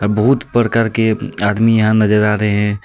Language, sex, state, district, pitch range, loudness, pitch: Hindi, male, Jharkhand, Deoghar, 105-115 Hz, -14 LUFS, 110 Hz